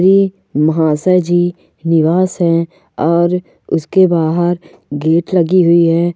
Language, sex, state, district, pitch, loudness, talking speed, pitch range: Hindi, female, Goa, North and South Goa, 175 Hz, -13 LUFS, 105 wpm, 165-180 Hz